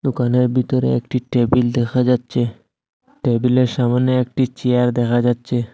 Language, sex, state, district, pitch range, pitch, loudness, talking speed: Bengali, male, Assam, Hailakandi, 120-125 Hz, 125 Hz, -18 LUFS, 125 wpm